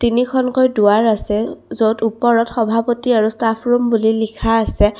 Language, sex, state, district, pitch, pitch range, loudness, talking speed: Assamese, female, Assam, Kamrup Metropolitan, 225 Hz, 220-240 Hz, -16 LUFS, 145 wpm